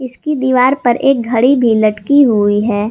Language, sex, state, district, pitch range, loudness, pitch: Hindi, female, Jharkhand, Garhwa, 215-270 Hz, -12 LUFS, 250 Hz